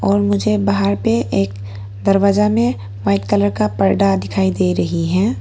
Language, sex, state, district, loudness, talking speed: Hindi, female, Arunachal Pradesh, Papum Pare, -16 LUFS, 165 wpm